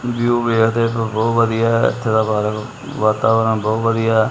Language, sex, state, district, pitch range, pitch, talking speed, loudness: Punjabi, male, Punjab, Kapurthala, 110-115 Hz, 115 Hz, 180 wpm, -17 LUFS